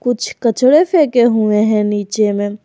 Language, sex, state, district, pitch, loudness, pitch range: Hindi, female, Jharkhand, Garhwa, 220 Hz, -13 LUFS, 210-250 Hz